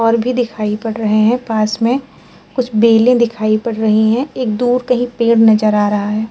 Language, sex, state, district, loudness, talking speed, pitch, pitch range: Hindi, female, Uttar Pradesh, Jalaun, -14 LUFS, 210 wpm, 225 Hz, 215-245 Hz